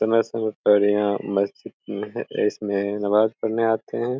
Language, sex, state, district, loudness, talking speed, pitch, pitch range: Hindi, male, Bihar, Begusarai, -23 LUFS, 155 wpm, 105 Hz, 100-115 Hz